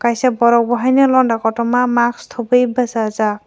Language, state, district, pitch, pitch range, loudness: Kokborok, Tripura, Dhalai, 240 Hz, 230-250 Hz, -15 LUFS